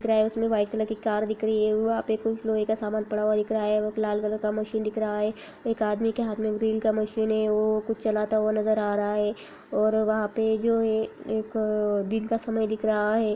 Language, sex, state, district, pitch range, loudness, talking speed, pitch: Hindi, female, Bihar, Saharsa, 215-220 Hz, -26 LUFS, 270 wpm, 215 Hz